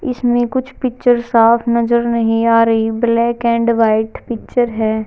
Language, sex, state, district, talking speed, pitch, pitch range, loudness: Hindi, male, Haryana, Charkhi Dadri, 155 wpm, 235 Hz, 225-240 Hz, -15 LUFS